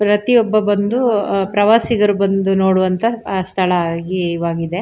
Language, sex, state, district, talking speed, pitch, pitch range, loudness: Kannada, female, Karnataka, Shimoga, 110 wpm, 195 Hz, 185-215 Hz, -16 LUFS